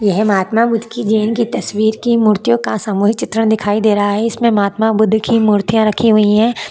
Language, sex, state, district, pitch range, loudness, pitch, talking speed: Hindi, female, Chhattisgarh, Korba, 205-225 Hz, -14 LUFS, 215 Hz, 215 wpm